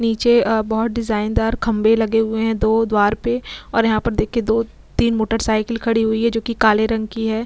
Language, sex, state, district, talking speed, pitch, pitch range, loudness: Hindi, female, Chhattisgarh, Korba, 215 wpm, 225 Hz, 220-230 Hz, -18 LUFS